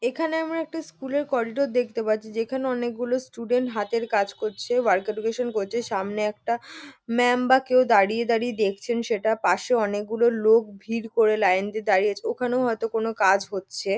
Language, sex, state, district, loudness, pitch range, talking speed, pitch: Bengali, female, West Bengal, North 24 Parganas, -24 LUFS, 210-245 Hz, 170 wpm, 230 Hz